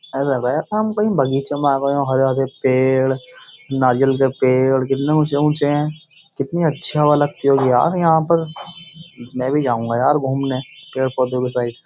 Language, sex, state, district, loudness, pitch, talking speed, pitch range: Hindi, male, Uttar Pradesh, Jyotiba Phule Nagar, -18 LUFS, 135 Hz, 160 wpm, 130-155 Hz